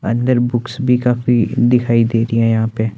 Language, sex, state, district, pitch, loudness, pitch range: Hindi, male, Chandigarh, Chandigarh, 120 Hz, -15 LUFS, 115-125 Hz